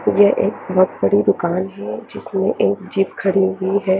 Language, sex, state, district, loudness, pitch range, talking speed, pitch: Hindi, female, Chandigarh, Chandigarh, -18 LUFS, 185-200 Hz, 180 wpm, 195 Hz